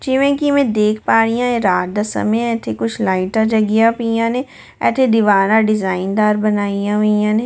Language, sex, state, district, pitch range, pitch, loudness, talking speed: Punjabi, female, Delhi, New Delhi, 205-230 Hz, 215 Hz, -16 LUFS, 185 wpm